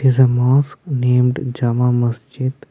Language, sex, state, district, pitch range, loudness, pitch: English, male, Karnataka, Bangalore, 125-130 Hz, -17 LUFS, 125 Hz